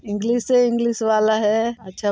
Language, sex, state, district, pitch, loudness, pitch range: Chhattisgarhi, female, Chhattisgarh, Sarguja, 220 Hz, -19 LUFS, 210-235 Hz